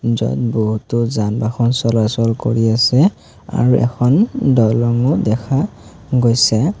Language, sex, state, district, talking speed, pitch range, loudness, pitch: Assamese, male, Assam, Kamrup Metropolitan, 105 wpm, 110-125 Hz, -16 LUFS, 115 Hz